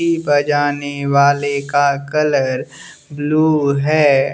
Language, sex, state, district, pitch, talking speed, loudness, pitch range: Hindi, male, Bihar, West Champaran, 145 Hz, 85 wpm, -16 LUFS, 140-150 Hz